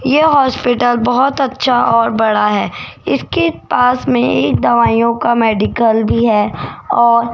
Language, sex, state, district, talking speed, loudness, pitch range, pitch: Hindi, female, Rajasthan, Jaipur, 145 wpm, -13 LUFS, 230-255 Hz, 235 Hz